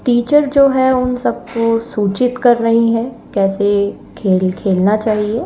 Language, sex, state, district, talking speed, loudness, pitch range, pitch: Hindi, female, Uttar Pradesh, Lalitpur, 145 wpm, -15 LUFS, 205-250 Hz, 230 Hz